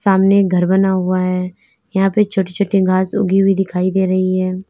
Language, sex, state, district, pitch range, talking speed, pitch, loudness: Hindi, female, Uttar Pradesh, Lalitpur, 185-195 Hz, 205 wpm, 190 Hz, -15 LUFS